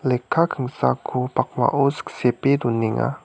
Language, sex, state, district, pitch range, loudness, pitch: Garo, male, Meghalaya, West Garo Hills, 120-140 Hz, -22 LUFS, 125 Hz